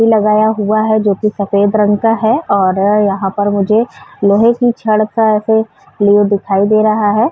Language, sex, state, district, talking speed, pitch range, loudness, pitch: Hindi, female, Uttar Pradesh, Varanasi, 190 wpm, 205-220 Hz, -12 LUFS, 210 Hz